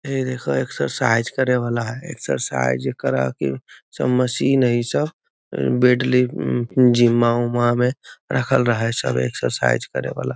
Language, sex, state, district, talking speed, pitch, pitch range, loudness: Magahi, male, Bihar, Gaya, 150 wpm, 120 Hz, 115-125 Hz, -20 LUFS